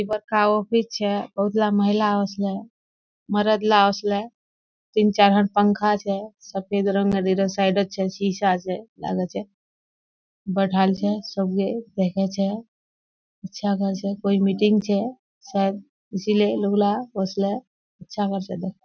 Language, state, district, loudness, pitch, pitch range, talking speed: Surjapuri, Bihar, Kishanganj, -22 LUFS, 200 Hz, 195-210 Hz, 130 wpm